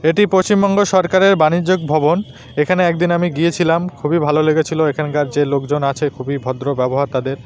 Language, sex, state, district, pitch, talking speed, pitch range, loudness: Bengali, male, West Bengal, North 24 Parganas, 155 Hz, 170 wpm, 140-175 Hz, -16 LUFS